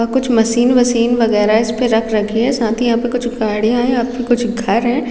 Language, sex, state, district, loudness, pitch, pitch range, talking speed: Hindi, female, Chhattisgarh, Raigarh, -15 LUFS, 235 Hz, 225-245 Hz, 245 wpm